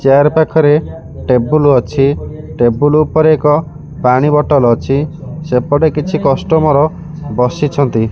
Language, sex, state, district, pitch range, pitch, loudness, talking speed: Odia, male, Odisha, Malkangiri, 135-155 Hz, 150 Hz, -12 LUFS, 105 wpm